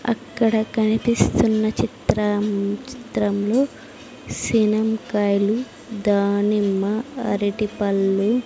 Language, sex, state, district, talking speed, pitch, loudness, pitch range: Telugu, female, Andhra Pradesh, Sri Satya Sai, 50 wpm, 215 Hz, -21 LUFS, 205-230 Hz